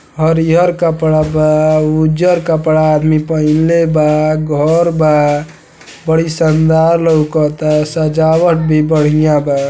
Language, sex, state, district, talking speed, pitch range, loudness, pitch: Bhojpuri, male, Uttar Pradesh, Deoria, 105 wpm, 155-160 Hz, -12 LUFS, 155 Hz